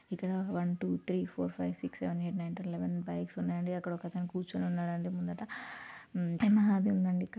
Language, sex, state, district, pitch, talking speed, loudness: Telugu, female, Telangana, Karimnagar, 175 Hz, 210 wpm, -34 LUFS